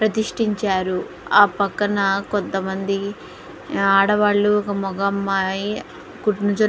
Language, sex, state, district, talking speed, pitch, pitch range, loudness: Telugu, female, Andhra Pradesh, Guntur, 70 wpm, 200 Hz, 195-210 Hz, -20 LUFS